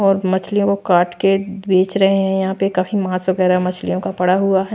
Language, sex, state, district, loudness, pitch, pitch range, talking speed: Hindi, female, Chhattisgarh, Raipur, -17 LUFS, 190 Hz, 185-195 Hz, 230 wpm